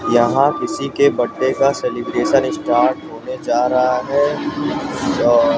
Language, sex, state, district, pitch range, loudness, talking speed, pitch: Hindi, male, Maharashtra, Mumbai Suburban, 125-145 Hz, -17 LUFS, 130 wpm, 130 Hz